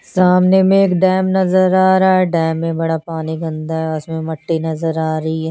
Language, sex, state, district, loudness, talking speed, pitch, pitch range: Hindi, female, Chandigarh, Chandigarh, -15 LUFS, 215 wpm, 165 Hz, 160-185 Hz